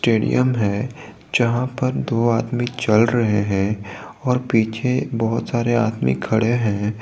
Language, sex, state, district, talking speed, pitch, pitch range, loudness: Hindi, male, Jharkhand, Garhwa, 135 wpm, 115 Hz, 105-120 Hz, -20 LUFS